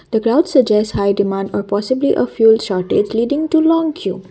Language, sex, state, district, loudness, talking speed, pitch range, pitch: English, female, Assam, Kamrup Metropolitan, -15 LUFS, 195 wpm, 200-270 Hz, 220 Hz